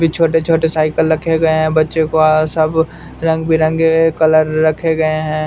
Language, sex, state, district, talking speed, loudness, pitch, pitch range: Hindi, male, Bihar, West Champaran, 185 wpm, -14 LUFS, 160 Hz, 155-160 Hz